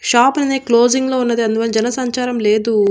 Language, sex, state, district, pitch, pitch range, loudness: Telugu, female, Andhra Pradesh, Annamaya, 240 Hz, 225-255 Hz, -15 LUFS